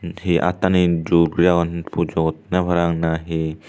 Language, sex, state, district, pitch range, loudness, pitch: Chakma, male, Tripura, Unakoti, 80-90 Hz, -19 LUFS, 85 Hz